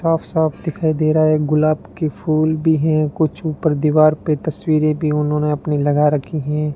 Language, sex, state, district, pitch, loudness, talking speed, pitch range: Hindi, male, Rajasthan, Bikaner, 155 Hz, -17 LUFS, 195 wpm, 150-155 Hz